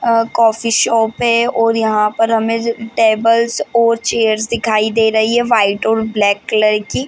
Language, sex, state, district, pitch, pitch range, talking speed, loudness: Hindi, female, Bihar, Madhepura, 225 Hz, 220-230 Hz, 185 wpm, -14 LUFS